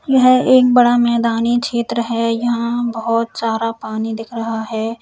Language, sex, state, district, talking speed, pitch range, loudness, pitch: Hindi, female, Uttar Pradesh, Lalitpur, 155 wpm, 225-240 Hz, -16 LUFS, 235 Hz